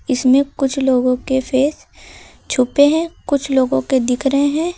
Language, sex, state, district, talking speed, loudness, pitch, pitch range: Hindi, female, Uttar Pradesh, Lucknow, 165 wpm, -16 LUFS, 270 Hz, 255-285 Hz